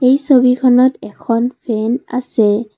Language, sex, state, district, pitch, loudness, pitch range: Assamese, female, Assam, Kamrup Metropolitan, 250 Hz, -14 LUFS, 230-255 Hz